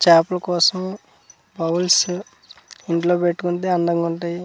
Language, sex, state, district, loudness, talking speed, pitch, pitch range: Telugu, male, Andhra Pradesh, Manyam, -19 LUFS, 110 wpm, 175 Hz, 170-180 Hz